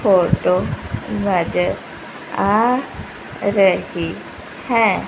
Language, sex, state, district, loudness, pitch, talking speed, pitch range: Hindi, female, Haryana, Rohtak, -19 LUFS, 195 Hz, 60 wpm, 180-225 Hz